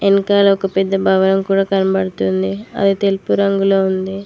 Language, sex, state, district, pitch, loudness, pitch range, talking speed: Telugu, female, Telangana, Mahabubabad, 195 Hz, -15 LUFS, 190-195 Hz, 140 wpm